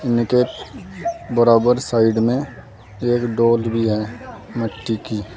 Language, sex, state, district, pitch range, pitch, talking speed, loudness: Hindi, male, Uttar Pradesh, Saharanpur, 110-120 Hz, 115 Hz, 110 wpm, -19 LUFS